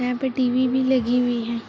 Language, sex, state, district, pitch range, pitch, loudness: Hindi, male, Bihar, Sitamarhi, 245-260 Hz, 250 Hz, -21 LUFS